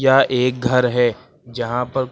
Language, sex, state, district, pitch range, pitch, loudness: Hindi, male, Uttar Pradesh, Lucknow, 120-130 Hz, 125 Hz, -18 LUFS